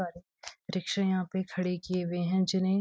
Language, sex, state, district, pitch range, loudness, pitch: Hindi, female, Uttarakhand, Uttarkashi, 180-190 Hz, -31 LUFS, 185 Hz